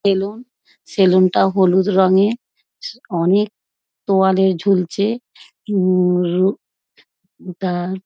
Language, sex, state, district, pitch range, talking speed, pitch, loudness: Bengali, female, West Bengal, Dakshin Dinajpur, 185-200 Hz, 90 wpm, 190 Hz, -17 LUFS